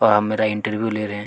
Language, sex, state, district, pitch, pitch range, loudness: Hindi, male, Chhattisgarh, Kabirdham, 105 Hz, 105-110 Hz, -21 LUFS